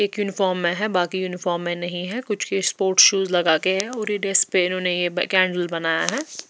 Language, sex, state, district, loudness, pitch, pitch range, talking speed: Hindi, female, Bihar, West Champaran, -21 LUFS, 185 Hz, 175-205 Hz, 240 wpm